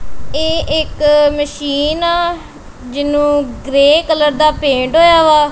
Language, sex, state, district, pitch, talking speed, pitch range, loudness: Punjabi, female, Punjab, Kapurthala, 295 Hz, 120 wpm, 290-315 Hz, -12 LUFS